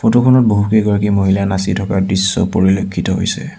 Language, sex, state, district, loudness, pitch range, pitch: Assamese, male, Assam, Sonitpur, -14 LUFS, 95-110 Hz, 100 Hz